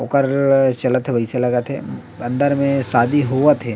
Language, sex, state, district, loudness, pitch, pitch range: Chhattisgarhi, male, Chhattisgarh, Rajnandgaon, -17 LUFS, 130 Hz, 120-140 Hz